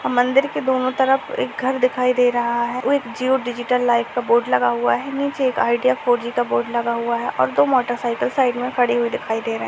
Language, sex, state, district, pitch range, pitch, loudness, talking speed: Hindi, female, Uttar Pradesh, Jalaun, 235-255 Hz, 245 Hz, -19 LUFS, 260 wpm